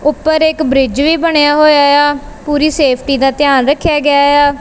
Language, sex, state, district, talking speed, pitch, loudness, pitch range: Punjabi, female, Punjab, Kapurthala, 180 wpm, 290 Hz, -10 LUFS, 280-305 Hz